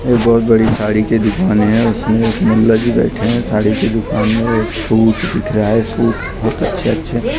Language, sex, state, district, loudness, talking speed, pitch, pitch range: Hindi, male, Maharashtra, Mumbai Suburban, -14 LUFS, 235 wpm, 110 Hz, 110-115 Hz